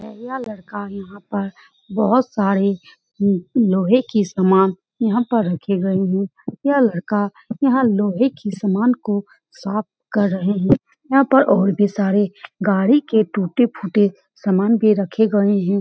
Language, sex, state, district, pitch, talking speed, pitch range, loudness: Hindi, female, Bihar, Saran, 205 Hz, 155 wpm, 195-230 Hz, -18 LUFS